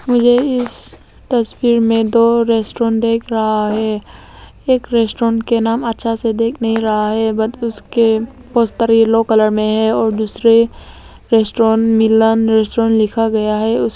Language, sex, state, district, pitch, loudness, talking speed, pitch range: Hindi, female, Arunachal Pradesh, Lower Dibang Valley, 225 Hz, -14 LUFS, 150 wpm, 220-230 Hz